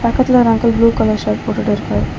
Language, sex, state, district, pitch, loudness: Tamil, female, Tamil Nadu, Chennai, 220 Hz, -14 LUFS